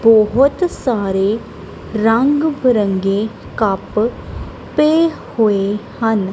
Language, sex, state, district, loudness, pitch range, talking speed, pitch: Punjabi, female, Punjab, Kapurthala, -16 LUFS, 205-265 Hz, 75 wpm, 220 Hz